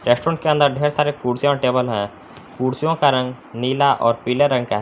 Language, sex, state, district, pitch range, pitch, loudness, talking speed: Hindi, male, Jharkhand, Palamu, 120-145 Hz, 130 Hz, -19 LUFS, 225 wpm